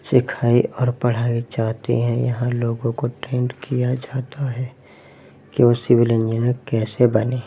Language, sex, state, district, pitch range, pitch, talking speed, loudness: Hindi, male, Uttar Pradesh, Hamirpur, 115-125 Hz, 120 Hz, 145 wpm, -20 LUFS